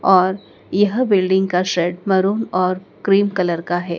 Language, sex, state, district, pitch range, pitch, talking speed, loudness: Hindi, female, Madhya Pradesh, Dhar, 180-195 Hz, 185 Hz, 165 wpm, -18 LUFS